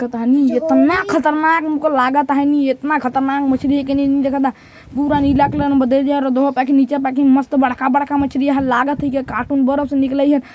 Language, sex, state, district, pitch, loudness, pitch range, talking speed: Hindi, male, Chhattisgarh, Jashpur, 275 Hz, -16 LUFS, 265-285 Hz, 190 wpm